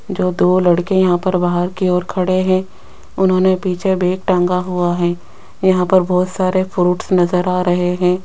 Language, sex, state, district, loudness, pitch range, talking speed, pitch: Hindi, female, Rajasthan, Jaipur, -16 LUFS, 180-185 Hz, 180 wpm, 180 Hz